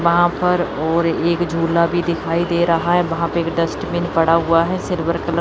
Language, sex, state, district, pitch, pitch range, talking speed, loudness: Hindi, female, Chandigarh, Chandigarh, 170 Hz, 165-175 Hz, 210 wpm, -18 LUFS